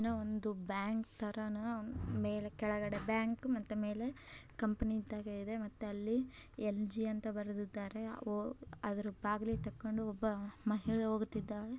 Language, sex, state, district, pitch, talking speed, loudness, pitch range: Kannada, male, Karnataka, Bellary, 215 Hz, 115 wpm, -40 LUFS, 210-225 Hz